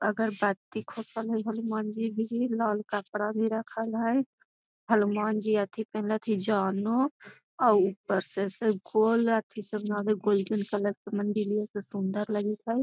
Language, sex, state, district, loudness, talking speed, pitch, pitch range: Magahi, female, Bihar, Gaya, -29 LUFS, 145 wpm, 215 Hz, 205-225 Hz